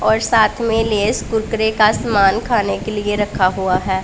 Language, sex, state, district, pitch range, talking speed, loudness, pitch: Hindi, female, Punjab, Pathankot, 195-220 Hz, 195 wpm, -16 LUFS, 210 Hz